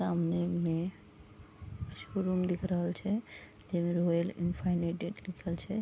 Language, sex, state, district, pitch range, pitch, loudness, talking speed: Maithili, female, Bihar, Vaishali, 165-180 Hz, 175 Hz, -34 LUFS, 115 wpm